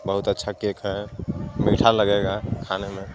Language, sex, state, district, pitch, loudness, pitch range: Hindi, male, Jharkhand, Garhwa, 100 Hz, -23 LUFS, 95-105 Hz